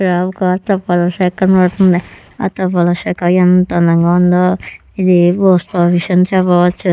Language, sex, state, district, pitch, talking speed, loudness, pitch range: Telugu, female, Andhra Pradesh, Chittoor, 180 Hz, 140 wpm, -12 LUFS, 175-185 Hz